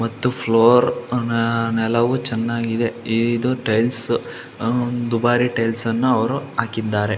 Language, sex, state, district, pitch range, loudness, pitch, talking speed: Kannada, male, Karnataka, Shimoga, 115-120 Hz, -19 LUFS, 115 Hz, 110 wpm